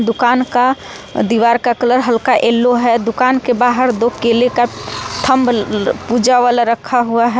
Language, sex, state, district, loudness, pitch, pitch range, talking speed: Hindi, female, Jharkhand, Palamu, -14 LUFS, 245 Hz, 235-250 Hz, 160 wpm